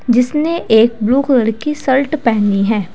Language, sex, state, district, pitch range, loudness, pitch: Hindi, female, Uttar Pradesh, Saharanpur, 220-285 Hz, -14 LUFS, 245 Hz